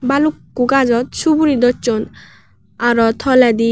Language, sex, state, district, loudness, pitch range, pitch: Chakma, female, Tripura, West Tripura, -15 LUFS, 235-275 Hz, 250 Hz